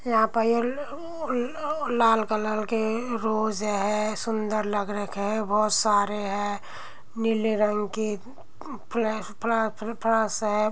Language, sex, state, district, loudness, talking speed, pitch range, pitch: Hindi, female, Uttar Pradesh, Muzaffarnagar, -26 LUFS, 105 wpm, 210-230 Hz, 220 Hz